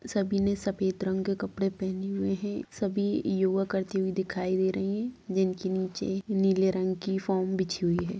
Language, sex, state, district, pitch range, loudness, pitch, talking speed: Hindi, female, Bihar, Sitamarhi, 185-195 Hz, -29 LUFS, 190 Hz, 190 wpm